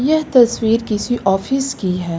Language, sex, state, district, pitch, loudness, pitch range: Hindi, female, Uttar Pradesh, Lucknow, 230 Hz, -16 LUFS, 195-265 Hz